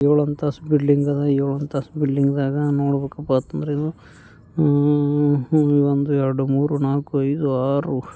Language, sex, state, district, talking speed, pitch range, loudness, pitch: Kannada, male, Karnataka, Bijapur, 130 wpm, 140-145 Hz, -20 LUFS, 145 Hz